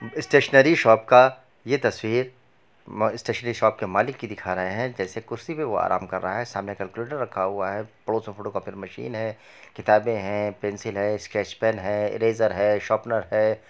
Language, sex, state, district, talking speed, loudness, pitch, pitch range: Hindi, male, Bihar, Gopalganj, 195 wpm, -23 LUFS, 110 Hz, 100-115 Hz